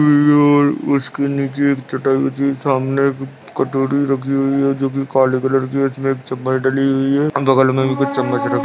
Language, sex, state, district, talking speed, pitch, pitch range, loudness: Hindi, male, Uttarakhand, Uttarkashi, 215 wpm, 135 Hz, 135-140 Hz, -16 LUFS